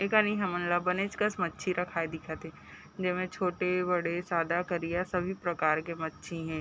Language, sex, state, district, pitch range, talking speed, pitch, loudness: Chhattisgarhi, female, Chhattisgarh, Raigarh, 165-180 Hz, 180 wpm, 180 Hz, -31 LUFS